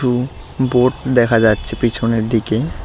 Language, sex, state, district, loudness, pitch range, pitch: Bengali, male, West Bengal, Cooch Behar, -16 LUFS, 110-125 Hz, 120 Hz